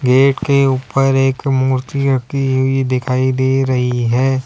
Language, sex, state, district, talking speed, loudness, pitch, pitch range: Hindi, male, Uttar Pradesh, Lalitpur, 150 wpm, -15 LUFS, 130 Hz, 130-135 Hz